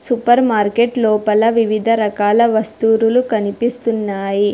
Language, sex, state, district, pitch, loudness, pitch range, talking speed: Telugu, female, Telangana, Hyderabad, 225 Hz, -15 LUFS, 210-235 Hz, 90 wpm